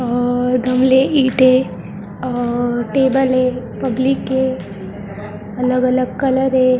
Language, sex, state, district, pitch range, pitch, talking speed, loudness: Hindi, female, Maharashtra, Mumbai Suburban, 240-260 Hz, 255 Hz, 115 wpm, -16 LUFS